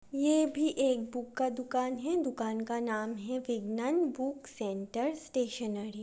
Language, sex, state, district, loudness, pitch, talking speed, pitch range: Hindi, female, Chhattisgarh, Raigarh, -33 LUFS, 255 Hz, 150 wpm, 230-275 Hz